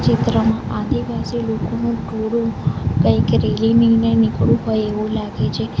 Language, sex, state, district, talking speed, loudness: Gujarati, female, Gujarat, Valsad, 125 wpm, -18 LUFS